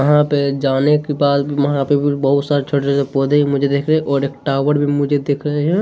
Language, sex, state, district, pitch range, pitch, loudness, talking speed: Hindi, male, Bihar, Saharsa, 140-145 Hz, 145 Hz, -16 LUFS, 235 wpm